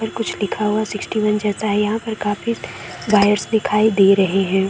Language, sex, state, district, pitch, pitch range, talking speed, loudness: Hindi, female, Bihar, Saran, 210 Hz, 205-220 Hz, 205 wpm, -18 LUFS